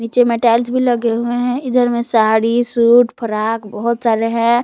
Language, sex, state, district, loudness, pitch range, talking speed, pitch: Hindi, female, Jharkhand, Palamu, -15 LUFS, 230-245 Hz, 180 wpm, 235 Hz